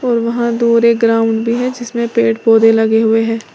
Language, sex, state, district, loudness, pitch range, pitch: Hindi, female, Uttar Pradesh, Lalitpur, -13 LUFS, 225-235 Hz, 230 Hz